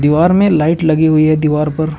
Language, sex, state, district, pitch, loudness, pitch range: Hindi, male, Uttar Pradesh, Shamli, 155 Hz, -12 LUFS, 150-165 Hz